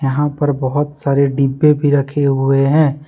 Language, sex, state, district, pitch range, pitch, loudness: Hindi, male, Jharkhand, Deoghar, 135-145 Hz, 145 Hz, -15 LUFS